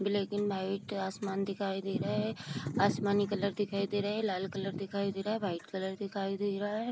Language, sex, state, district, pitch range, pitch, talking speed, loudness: Hindi, female, Bihar, Vaishali, 195-205 Hz, 200 Hz, 225 wpm, -34 LUFS